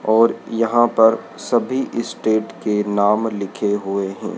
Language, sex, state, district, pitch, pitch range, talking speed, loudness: Hindi, male, Madhya Pradesh, Dhar, 110 Hz, 105-115 Hz, 135 wpm, -19 LUFS